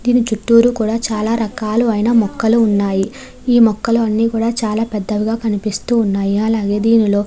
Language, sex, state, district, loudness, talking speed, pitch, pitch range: Telugu, female, Andhra Pradesh, Krishna, -15 LUFS, 165 wpm, 225 Hz, 210-230 Hz